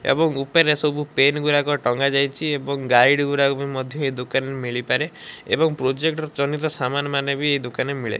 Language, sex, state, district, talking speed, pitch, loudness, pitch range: Odia, male, Odisha, Malkangiri, 185 wpm, 140 Hz, -21 LUFS, 135-150 Hz